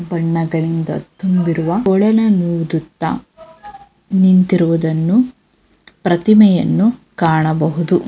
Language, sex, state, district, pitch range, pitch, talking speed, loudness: Kannada, female, Karnataka, Bellary, 165-210 Hz, 180 Hz, 45 wpm, -15 LUFS